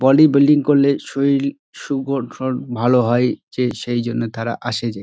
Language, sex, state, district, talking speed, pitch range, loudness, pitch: Bengali, male, West Bengal, Dakshin Dinajpur, 145 wpm, 120-140 Hz, -18 LUFS, 125 Hz